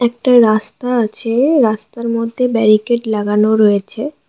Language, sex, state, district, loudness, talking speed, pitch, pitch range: Bengali, female, West Bengal, Alipurduar, -14 LUFS, 110 wpm, 230 Hz, 215-245 Hz